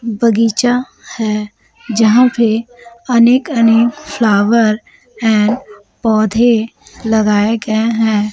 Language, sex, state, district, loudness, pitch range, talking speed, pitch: Hindi, female, Chhattisgarh, Raipur, -13 LUFS, 215-235 Hz, 85 wpm, 225 Hz